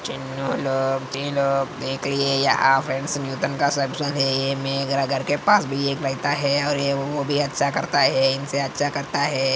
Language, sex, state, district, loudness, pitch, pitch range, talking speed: Hindi, male, Maharashtra, Aurangabad, -22 LUFS, 140 Hz, 135-140 Hz, 145 wpm